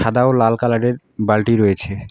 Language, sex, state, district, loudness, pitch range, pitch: Bengali, female, West Bengal, Alipurduar, -17 LUFS, 105-120 Hz, 115 Hz